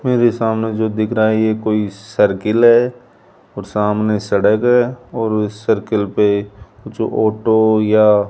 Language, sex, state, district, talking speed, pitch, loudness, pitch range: Hindi, male, Rajasthan, Jaipur, 160 wpm, 110 Hz, -16 LUFS, 105-110 Hz